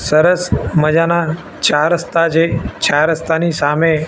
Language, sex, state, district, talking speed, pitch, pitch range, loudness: Gujarati, male, Gujarat, Gandhinagar, 115 wpm, 160 Hz, 155-170 Hz, -14 LUFS